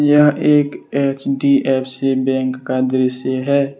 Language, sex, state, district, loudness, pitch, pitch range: Hindi, male, Jharkhand, Deoghar, -17 LUFS, 135 Hz, 130-140 Hz